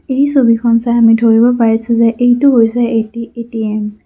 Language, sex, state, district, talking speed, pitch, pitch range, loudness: Assamese, female, Assam, Kamrup Metropolitan, 175 wpm, 230 Hz, 225-240 Hz, -11 LUFS